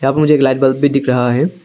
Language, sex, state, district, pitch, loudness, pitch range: Hindi, male, Arunachal Pradesh, Lower Dibang Valley, 135 Hz, -13 LUFS, 130-150 Hz